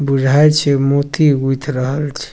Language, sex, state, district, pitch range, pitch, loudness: Maithili, male, Bihar, Supaul, 135-150 Hz, 140 Hz, -14 LUFS